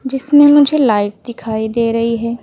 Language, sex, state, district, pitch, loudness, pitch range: Hindi, female, Uttar Pradesh, Saharanpur, 235 Hz, -13 LUFS, 230-275 Hz